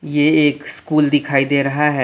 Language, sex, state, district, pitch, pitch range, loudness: Hindi, male, Tripura, West Tripura, 145 Hz, 140-150 Hz, -16 LUFS